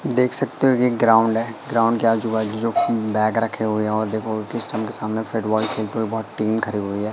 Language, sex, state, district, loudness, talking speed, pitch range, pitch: Hindi, male, Madhya Pradesh, Katni, -20 LUFS, 245 wpm, 110-115 Hz, 110 Hz